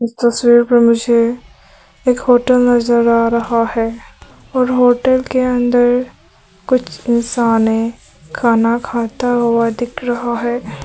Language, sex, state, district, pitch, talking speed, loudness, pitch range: Hindi, female, Arunachal Pradesh, Papum Pare, 240 Hz, 120 wpm, -14 LUFS, 235-245 Hz